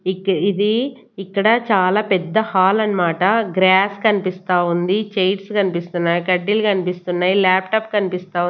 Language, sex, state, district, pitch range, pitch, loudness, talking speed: Telugu, female, Andhra Pradesh, Annamaya, 185-210 Hz, 190 Hz, -18 LUFS, 115 wpm